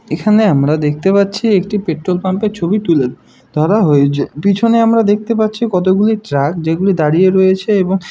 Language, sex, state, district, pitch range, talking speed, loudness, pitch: Bengali, male, West Bengal, Dakshin Dinajpur, 160-210 Hz, 165 wpm, -13 LUFS, 190 Hz